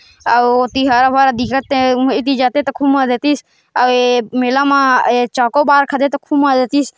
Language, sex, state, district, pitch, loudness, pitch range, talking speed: Hindi, female, Chhattisgarh, Kabirdham, 265 Hz, -13 LUFS, 250-280 Hz, 225 wpm